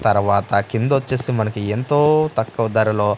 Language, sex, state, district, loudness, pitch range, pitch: Telugu, male, Andhra Pradesh, Manyam, -18 LUFS, 105-130 Hz, 110 Hz